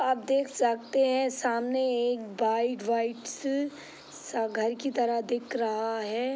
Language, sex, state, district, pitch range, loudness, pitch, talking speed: Hindi, female, Uttar Pradesh, Hamirpur, 230-260 Hz, -29 LUFS, 240 Hz, 115 wpm